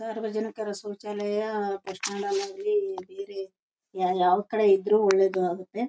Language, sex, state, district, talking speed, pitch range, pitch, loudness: Kannada, female, Karnataka, Shimoga, 120 wpm, 195-230 Hz, 210 Hz, -27 LUFS